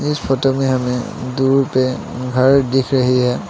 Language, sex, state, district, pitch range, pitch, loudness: Hindi, male, Assam, Sonitpur, 125-135 Hz, 130 Hz, -16 LUFS